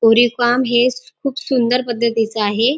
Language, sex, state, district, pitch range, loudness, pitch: Marathi, female, Maharashtra, Dhule, 230-250 Hz, -17 LUFS, 240 Hz